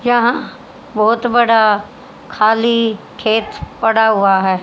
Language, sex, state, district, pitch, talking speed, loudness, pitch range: Hindi, female, Haryana, Charkhi Dadri, 225 Hz, 105 wpm, -14 LUFS, 215-240 Hz